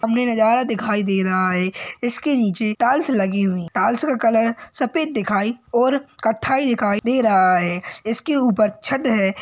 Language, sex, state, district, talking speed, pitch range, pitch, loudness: Hindi, male, Uttar Pradesh, Gorakhpur, 170 wpm, 200-250 Hz, 225 Hz, -19 LUFS